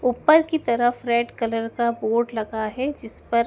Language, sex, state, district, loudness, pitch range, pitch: Hindi, female, Madhya Pradesh, Dhar, -22 LUFS, 225-245 Hz, 235 Hz